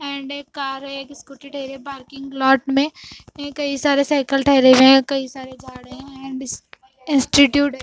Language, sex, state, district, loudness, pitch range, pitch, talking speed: Hindi, female, Punjab, Fazilka, -17 LUFS, 265-280 Hz, 275 Hz, 175 wpm